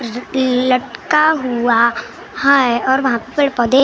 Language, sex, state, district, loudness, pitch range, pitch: Hindi, female, Maharashtra, Gondia, -15 LUFS, 240-275 Hz, 255 Hz